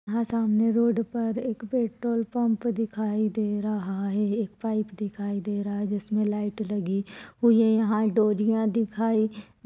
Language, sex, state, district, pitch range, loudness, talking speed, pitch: Hindi, female, Chhattisgarh, Balrampur, 210-225 Hz, -26 LUFS, 155 wpm, 215 Hz